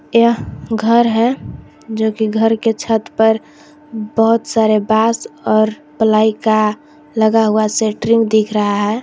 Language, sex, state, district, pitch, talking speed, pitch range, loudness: Hindi, female, Jharkhand, Garhwa, 220 Hz, 140 wpm, 215-230 Hz, -15 LUFS